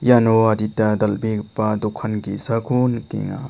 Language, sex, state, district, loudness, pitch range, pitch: Garo, male, Meghalaya, South Garo Hills, -20 LUFS, 105-120 Hz, 110 Hz